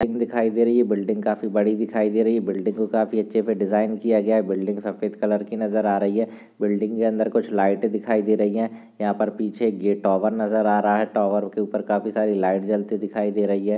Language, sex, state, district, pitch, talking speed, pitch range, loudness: Hindi, male, Bihar, Lakhisarai, 105 Hz, 255 wpm, 105-110 Hz, -22 LUFS